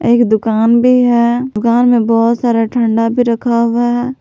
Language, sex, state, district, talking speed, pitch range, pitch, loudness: Hindi, female, Jharkhand, Palamu, 185 wpm, 230-245 Hz, 235 Hz, -12 LUFS